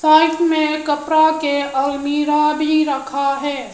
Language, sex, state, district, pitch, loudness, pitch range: Hindi, female, Arunachal Pradesh, Lower Dibang Valley, 295 Hz, -17 LUFS, 280-310 Hz